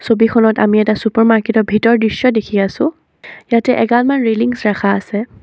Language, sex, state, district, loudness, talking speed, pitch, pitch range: Assamese, female, Assam, Sonitpur, -14 LUFS, 155 wpm, 225 Hz, 215-235 Hz